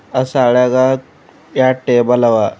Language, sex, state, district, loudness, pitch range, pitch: Kannada, male, Karnataka, Bidar, -13 LUFS, 120-130 Hz, 125 Hz